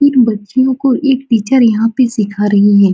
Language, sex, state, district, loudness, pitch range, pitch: Hindi, female, Bihar, Supaul, -12 LUFS, 205-260 Hz, 230 Hz